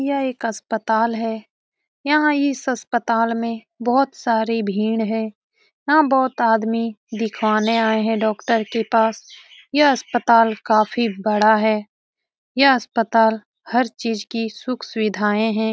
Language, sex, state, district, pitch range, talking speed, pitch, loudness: Hindi, male, Bihar, Jamui, 220-245 Hz, 145 wpm, 225 Hz, -19 LUFS